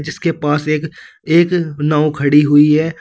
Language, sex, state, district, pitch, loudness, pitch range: Hindi, male, Uttar Pradesh, Saharanpur, 150 Hz, -14 LUFS, 145-160 Hz